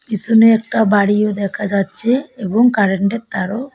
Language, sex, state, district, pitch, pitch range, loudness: Bengali, female, West Bengal, Cooch Behar, 210 Hz, 200-225 Hz, -15 LUFS